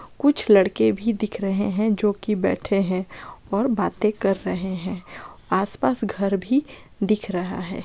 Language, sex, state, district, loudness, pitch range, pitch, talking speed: Maithili, female, Bihar, Darbhanga, -22 LUFS, 190-215 Hz, 200 Hz, 160 wpm